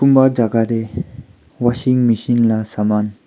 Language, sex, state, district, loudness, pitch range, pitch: Nagamese, male, Nagaland, Kohima, -16 LUFS, 105-125 Hz, 115 Hz